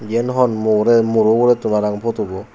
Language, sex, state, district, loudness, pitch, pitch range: Chakma, male, Tripura, Unakoti, -16 LUFS, 115 Hz, 105-115 Hz